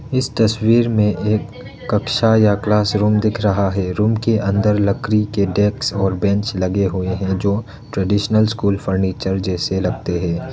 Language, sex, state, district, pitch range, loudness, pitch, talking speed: Hindi, male, Arunachal Pradesh, Lower Dibang Valley, 95-110 Hz, -18 LUFS, 105 Hz, 160 wpm